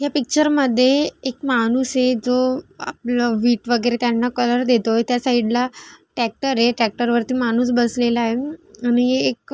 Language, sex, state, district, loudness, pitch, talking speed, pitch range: Marathi, female, Maharashtra, Dhule, -19 LUFS, 245 Hz, 140 wpm, 240-255 Hz